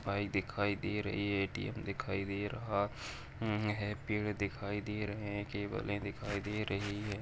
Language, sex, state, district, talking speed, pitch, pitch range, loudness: Bhojpuri, male, Uttar Pradesh, Gorakhpur, 175 wpm, 100 Hz, 100-105 Hz, -38 LUFS